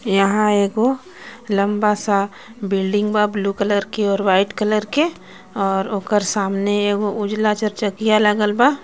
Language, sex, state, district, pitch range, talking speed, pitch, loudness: Bhojpuri, female, Jharkhand, Palamu, 200-215 Hz, 140 wpm, 205 Hz, -19 LUFS